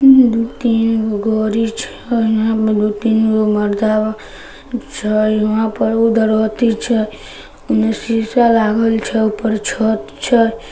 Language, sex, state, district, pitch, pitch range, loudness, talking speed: Maithili, female, Bihar, Samastipur, 220 Hz, 215-230 Hz, -15 LUFS, 140 wpm